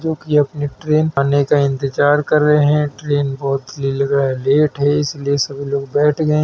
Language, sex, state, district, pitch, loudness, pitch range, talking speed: Hindi, male, Uttar Pradesh, Hamirpur, 145 Hz, -16 LUFS, 140-150 Hz, 225 wpm